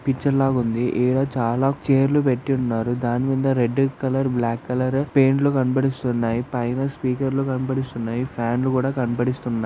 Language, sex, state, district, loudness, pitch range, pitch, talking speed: Telugu, male, Andhra Pradesh, Anantapur, -21 LUFS, 120-135 Hz, 130 Hz, 125 wpm